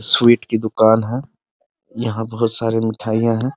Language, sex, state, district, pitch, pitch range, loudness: Hindi, male, Bihar, Muzaffarpur, 115 Hz, 110-120 Hz, -17 LUFS